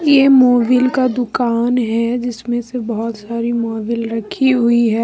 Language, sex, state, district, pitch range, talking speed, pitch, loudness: Hindi, female, Jharkhand, Deoghar, 230-250 Hz, 165 wpm, 240 Hz, -16 LUFS